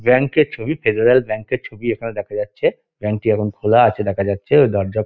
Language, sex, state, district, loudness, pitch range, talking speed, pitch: Bengali, male, West Bengal, Dakshin Dinajpur, -18 LUFS, 105-125 Hz, 225 wpm, 110 Hz